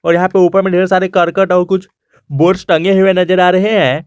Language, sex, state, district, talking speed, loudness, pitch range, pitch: Hindi, male, Jharkhand, Garhwa, 250 wpm, -11 LUFS, 180-190 Hz, 185 Hz